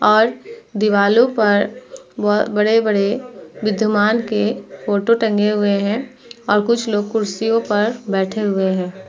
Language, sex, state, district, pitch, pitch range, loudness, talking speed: Hindi, female, Uttar Pradesh, Muzaffarnagar, 215 Hz, 205-230 Hz, -17 LUFS, 120 wpm